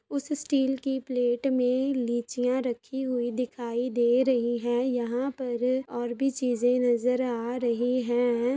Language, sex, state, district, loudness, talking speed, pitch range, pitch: Hindi, female, Chhattisgarh, Bastar, -27 LUFS, 145 wpm, 240-260 Hz, 250 Hz